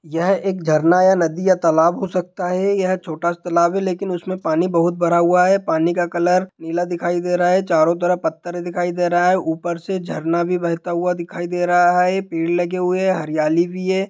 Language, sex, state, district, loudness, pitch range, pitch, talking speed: Hindi, male, Bihar, Sitamarhi, -18 LUFS, 170-185 Hz, 175 Hz, 230 wpm